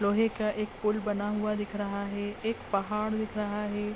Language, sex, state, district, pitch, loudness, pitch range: Hindi, female, Uttar Pradesh, Ghazipur, 210 Hz, -31 LUFS, 205-215 Hz